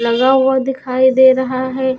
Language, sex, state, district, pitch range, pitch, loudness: Hindi, female, Chhattisgarh, Raipur, 260-265 Hz, 260 Hz, -13 LUFS